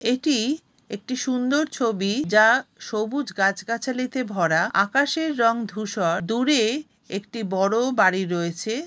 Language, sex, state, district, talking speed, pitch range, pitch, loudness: Bengali, female, West Bengal, Jalpaiguri, 110 wpm, 195-255 Hz, 230 Hz, -23 LUFS